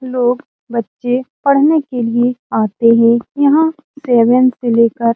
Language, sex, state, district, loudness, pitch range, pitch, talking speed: Hindi, female, Bihar, Lakhisarai, -14 LUFS, 235-275 Hz, 245 Hz, 140 wpm